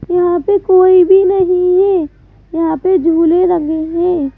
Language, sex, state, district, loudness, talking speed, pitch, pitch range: Hindi, female, Madhya Pradesh, Bhopal, -11 LUFS, 150 wpm, 360 Hz, 330-370 Hz